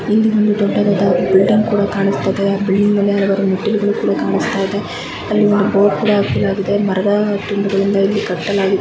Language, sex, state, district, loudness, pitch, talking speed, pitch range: Kannada, female, Karnataka, Mysore, -15 LUFS, 200 Hz, 130 wpm, 195-205 Hz